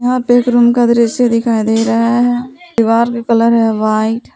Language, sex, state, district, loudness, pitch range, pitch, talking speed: Hindi, female, Jharkhand, Palamu, -12 LUFS, 230-245 Hz, 235 Hz, 220 wpm